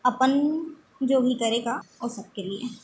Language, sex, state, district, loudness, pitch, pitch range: Chhattisgarhi, female, Chhattisgarh, Bilaspur, -26 LUFS, 250 Hz, 230-270 Hz